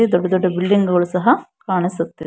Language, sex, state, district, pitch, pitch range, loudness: Kannada, female, Karnataka, Bangalore, 185 Hz, 175-200 Hz, -18 LUFS